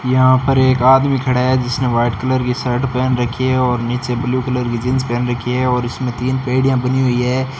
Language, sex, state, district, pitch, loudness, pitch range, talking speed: Hindi, male, Rajasthan, Bikaner, 125 Hz, -16 LUFS, 125-130 Hz, 235 wpm